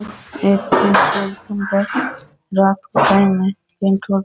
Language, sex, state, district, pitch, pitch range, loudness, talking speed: Rajasthani, female, Rajasthan, Nagaur, 195 Hz, 195-200 Hz, -17 LUFS, 125 wpm